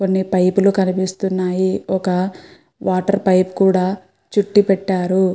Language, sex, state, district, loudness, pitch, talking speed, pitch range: Telugu, female, Andhra Pradesh, Guntur, -17 LUFS, 190 Hz, 110 wpm, 185-195 Hz